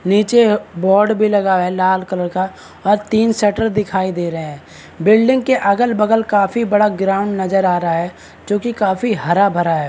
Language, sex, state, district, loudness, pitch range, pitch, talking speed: Hindi, male, Maharashtra, Chandrapur, -15 LUFS, 185-215 Hz, 200 Hz, 200 wpm